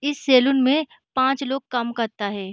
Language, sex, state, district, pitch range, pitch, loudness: Hindi, female, Bihar, Begusarai, 235-275 Hz, 260 Hz, -21 LUFS